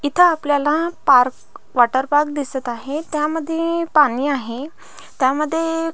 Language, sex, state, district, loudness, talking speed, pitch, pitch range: Marathi, female, Maharashtra, Pune, -18 LUFS, 120 wpm, 295 Hz, 270-330 Hz